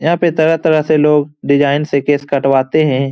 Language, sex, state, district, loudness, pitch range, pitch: Hindi, male, Bihar, Lakhisarai, -13 LUFS, 140-155 Hz, 150 Hz